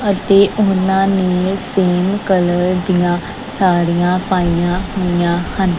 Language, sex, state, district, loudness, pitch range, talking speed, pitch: Punjabi, female, Punjab, Kapurthala, -15 LUFS, 175-195 Hz, 95 wpm, 185 Hz